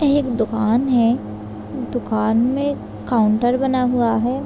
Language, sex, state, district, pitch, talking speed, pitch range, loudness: Hindi, female, Jharkhand, Jamtara, 240 Hz, 135 wpm, 220-255 Hz, -19 LUFS